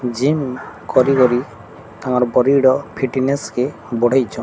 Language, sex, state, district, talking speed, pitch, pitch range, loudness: Odia, female, Odisha, Sambalpur, 120 wpm, 125 Hz, 120-130 Hz, -17 LUFS